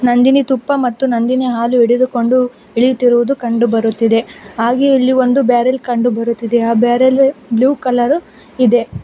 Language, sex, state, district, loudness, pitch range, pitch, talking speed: Kannada, female, Karnataka, Bangalore, -13 LUFS, 235-260 Hz, 245 Hz, 135 wpm